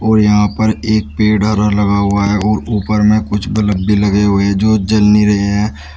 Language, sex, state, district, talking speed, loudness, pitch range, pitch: Hindi, male, Uttar Pradesh, Shamli, 220 wpm, -13 LUFS, 100-105 Hz, 105 Hz